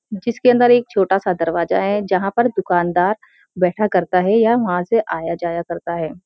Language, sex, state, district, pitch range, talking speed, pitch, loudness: Hindi, female, Uttarakhand, Uttarkashi, 175-220 Hz, 190 wpm, 185 Hz, -17 LUFS